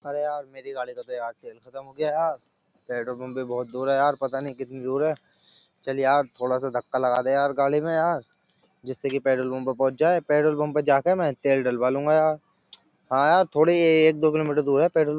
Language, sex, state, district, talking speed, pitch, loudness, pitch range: Hindi, male, Uttar Pradesh, Jyotiba Phule Nagar, 230 wpm, 140 Hz, -23 LUFS, 130-155 Hz